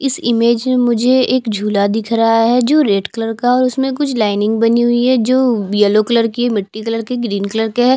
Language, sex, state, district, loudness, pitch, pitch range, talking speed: Hindi, female, Chhattisgarh, Jashpur, -14 LUFS, 235 Hz, 220-250 Hz, 250 wpm